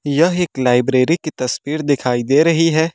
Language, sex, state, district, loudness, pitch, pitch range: Hindi, male, Uttar Pradesh, Lucknow, -16 LUFS, 145 Hz, 130-165 Hz